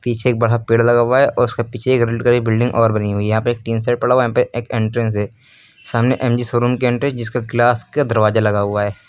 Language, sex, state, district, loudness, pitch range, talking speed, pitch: Hindi, male, Uttar Pradesh, Lucknow, -17 LUFS, 115-125 Hz, 270 wpm, 120 Hz